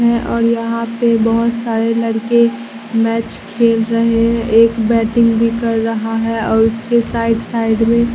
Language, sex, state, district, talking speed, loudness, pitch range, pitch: Hindi, female, Bihar, Katihar, 155 wpm, -15 LUFS, 225-235 Hz, 230 Hz